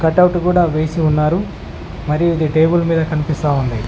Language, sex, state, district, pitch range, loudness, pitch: Telugu, male, Telangana, Mahabubabad, 150-170 Hz, -16 LUFS, 155 Hz